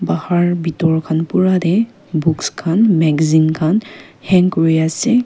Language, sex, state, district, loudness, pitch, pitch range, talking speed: Nagamese, female, Nagaland, Kohima, -15 LUFS, 165 Hz, 160-185 Hz, 135 wpm